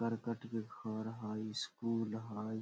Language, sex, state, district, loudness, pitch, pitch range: Maithili, male, Bihar, Samastipur, -41 LUFS, 110 Hz, 110-115 Hz